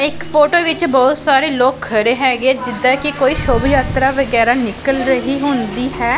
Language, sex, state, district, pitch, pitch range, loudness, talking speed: Punjabi, female, Punjab, Pathankot, 265 Hz, 250-280 Hz, -14 LUFS, 185 wpm